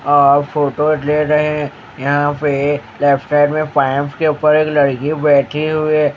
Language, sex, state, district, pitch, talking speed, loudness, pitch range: Hindi, male, Haryana, Jhajjar, 145 Hz, 175 wpm, -15 LUFS, 140-150 Hz